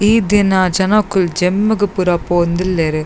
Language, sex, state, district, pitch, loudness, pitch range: Tulu, female, Karnataka, Dakshina Kannada, 185 Hz, -14 LUFS, 175-205 Hz